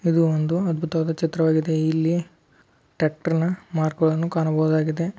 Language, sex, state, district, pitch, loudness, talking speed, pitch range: Kannada, male, Karnataka, Belgaum, 160 Hz, -22 LUFS, 90 wpm, 155-165 Hz